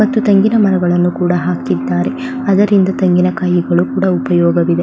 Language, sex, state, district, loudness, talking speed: Kannada, female, Karnataka, Belgaum, -13 LUFS, 125 wpm